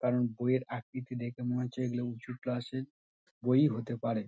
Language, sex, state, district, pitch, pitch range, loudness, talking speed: Bengali, male, West Bengal, Dakshin Dinajpur, 125 Hz, 120-125 Hz, -34 LUFS, 225 wpm